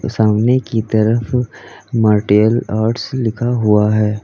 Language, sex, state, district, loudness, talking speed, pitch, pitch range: Hindi, male, Uttar Pradesh, Lalitpur, -15 LUFS, 115 wpm, 110 Hz, 105-120 Hz